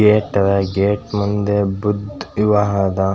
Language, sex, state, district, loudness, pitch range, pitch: Kannada, male, Karnataka, Gulbarga, -18 LUFS, 100-105 Hz, 100 Hz